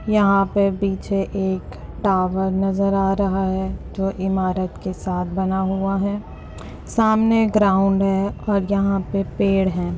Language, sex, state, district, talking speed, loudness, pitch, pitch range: Hindi, female, Uttar Pradesh, Muzaffarnagar, 145 wpm, -20 LUFS, 195 Hz, 190-200 Hz